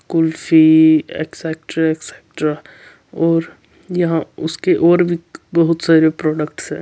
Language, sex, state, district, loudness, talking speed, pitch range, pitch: Marwari, male, Rajasthan, Churu, -16 LUFS, 90 wpm, 160-165 Hz, 160 Hz